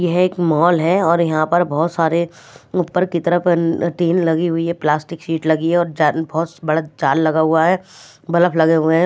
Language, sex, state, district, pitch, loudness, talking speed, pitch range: Hindi, female, Maharashtra, Mumbai Suburban, 165 Hz, -17 LUFS, 205 wpm, 160-175 Hz